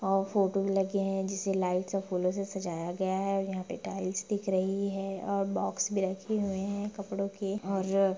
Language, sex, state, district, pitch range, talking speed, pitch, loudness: Hindi, female, Bihar, Gaya, 190-195 Hz, 215 wpm, 195 Hz, -32 LUFS